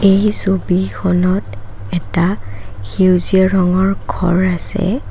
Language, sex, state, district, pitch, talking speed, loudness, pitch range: Assamese, female, Assam, Kamrup Metropolitan, 185 Hz, 80 wpm, -15 LUFS, 170-190 Hz